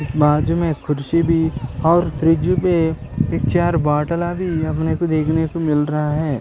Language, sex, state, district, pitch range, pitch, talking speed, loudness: Hindi, male, Maharashtra, Dhule, 150-165 Hz, 160 Hz, 185 wpm, -18 LUFS